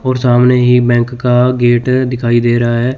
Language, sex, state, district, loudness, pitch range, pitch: Hindi, male, Chandigarh, Chandigarh, -11 LUFS, 120-125 Hz, 125 Hz